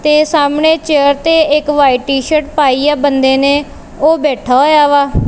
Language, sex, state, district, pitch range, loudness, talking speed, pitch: Punjabi, female, Punjab, Kapurthala, 280-305 Hz, -11 LUFS, 170 wpm, 290 Hz